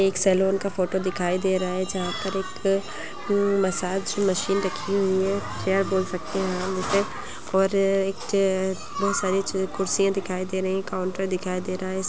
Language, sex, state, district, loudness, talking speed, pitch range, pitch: Hindi, female, Bihar, Gaya, -25 LUFS, 165 wpm, 185-195 Hz, 190 Hz